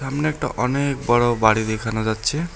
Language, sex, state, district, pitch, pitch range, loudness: Bengali, male, West Bengal, Alipurduar, 120 Hz, 110-140 Hz, -20 LUFS